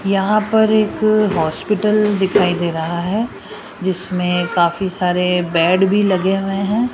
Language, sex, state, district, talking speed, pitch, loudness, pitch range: Hindi, female, Rajasthan, Jaipur, 140 wpm, 195 Hz, -16 LUFS, 180-210 Hz